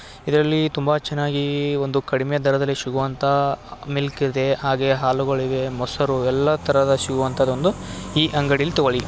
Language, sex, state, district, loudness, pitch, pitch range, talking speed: Kannada, male, Karnataka, Belgaum, -21 LUFS, 140 Hz, 135-145 Hz, 145 wpm